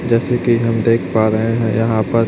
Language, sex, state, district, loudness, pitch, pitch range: Hindi, male, Chhattisgarh, Raipur, -16 LUFS, 115 Hz, 110-115 Hz